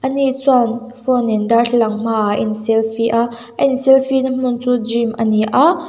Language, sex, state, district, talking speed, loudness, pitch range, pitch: Mizo, female, Mizoram, Aizawl, 195 wpm, -16 LUFS, 225-265 Hz, 240 Hz